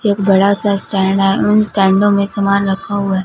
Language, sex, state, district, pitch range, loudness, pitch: Hindi, female, Punjab, Fazilka, 195-205 Hz, -13 LUFS, 200 Hz